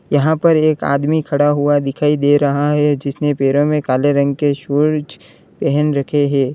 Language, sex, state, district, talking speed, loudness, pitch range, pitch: Hindi, male, Uttar Pradesh, Lalitpur, 185 wpm, -15 LUFS, 140-150 Hz, 145 Hz